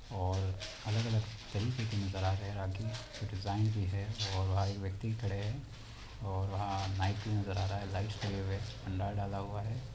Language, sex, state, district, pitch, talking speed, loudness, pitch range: Hindi, male, Jharkhand, Sahebganj, 100 Hz, 180 wpm, -37 LUFS, 95-110 Hz